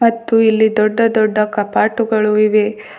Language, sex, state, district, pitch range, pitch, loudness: Kannada, female, Karnataka, Bidar, 215-225 Hz, 215 Hz, -14 LUFS